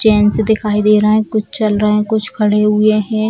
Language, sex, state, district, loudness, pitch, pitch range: Hindi, female, Bihar, Purnia, -13 LUFS, 215 Hz, 210-220 Hz